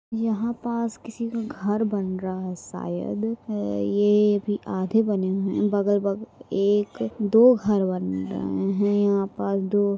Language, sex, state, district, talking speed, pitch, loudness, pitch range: Hindi, female, Chhattisgarh, Bilaspur, 155 wpm, 205 Hz, -24 LUFS, 190-220 Hz